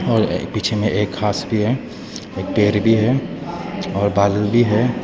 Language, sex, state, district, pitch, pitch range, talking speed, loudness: Hindi, male, Nagaland, Dimapur, 105 Hz, 100-115 Hz, 180 wpm, -19 LUFS